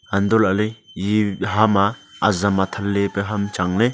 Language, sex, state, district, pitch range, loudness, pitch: Wancho, male, Arunachal Pradesh, Longding, 100-110 Hz, -20 LUFS, 100 Hz